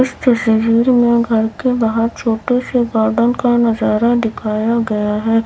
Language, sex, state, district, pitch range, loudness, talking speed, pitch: Hindi, female, Uttar Pradesh, Lalitpur, 220-240 Hz, -15 LUFS, 155 wpm, 230 Hz